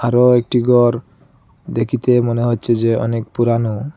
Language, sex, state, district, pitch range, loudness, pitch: Bengali, male, Assam, Hailakandi, 115-125 Hz, -16 LUFS, 120 Hz